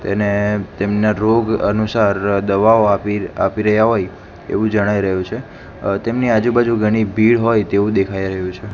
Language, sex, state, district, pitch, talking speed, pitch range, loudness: Gujarati, male, Gujarat, Gandhinagar, 105 Hz, 165 wpm, 100-110 Hz, -16 LUFS